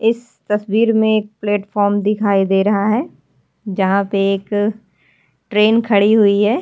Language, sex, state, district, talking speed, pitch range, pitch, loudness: Hindi, female, Uttarakhand, Tehri Garhwal, 145 wpm, 200-220 Hz, 210 Hz, -16 LUFS